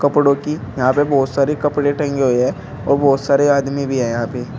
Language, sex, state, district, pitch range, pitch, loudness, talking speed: Hindi, male, Uttar Pradesh, Shamli, 130-145 Hz, 140 Hz, -17 LUFS, 210 wpm